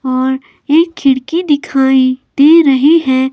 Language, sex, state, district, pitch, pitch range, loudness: Hindi, female, Himachal Pradesh, Shimla, 275 Hz, 265-315 Hz, -11 LUFS